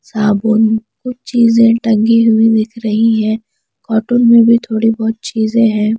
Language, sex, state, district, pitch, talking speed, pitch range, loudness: Hindi, female, Punjab, Pathankot, 225 Hz, 150 wpm, 220-230 Hz, -12 LUFS